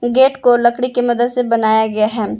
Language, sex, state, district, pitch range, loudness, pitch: Hindi, female, Jharkhand, Palamu, 220-250 Hz, -14 LUFS, 240 Hz